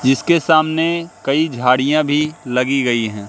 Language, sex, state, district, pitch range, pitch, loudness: Hindi, male, Madhya Pradesh, Katni, 125-160 Hz, 145 Hz, -16 LUFS